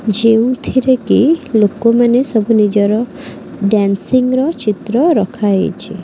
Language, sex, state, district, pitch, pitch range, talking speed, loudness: Odia, female, Odisha, Khordha, 225 Hz, 210-255 Hz, 100 wpm, -13 LUFS